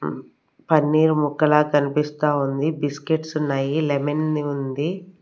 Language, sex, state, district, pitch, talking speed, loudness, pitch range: Telugu, female, Andhra Pradesh, Sri Satya Sai, 150 Hz, 90 wpm, -21 LUFS, 145-155 Hz